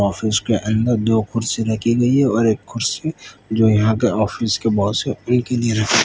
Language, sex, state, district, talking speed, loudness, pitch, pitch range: Hindi, male, Gujarat, Valsad, 220 wpm, -18 LUFS, 115 Hz, 110-120 Hz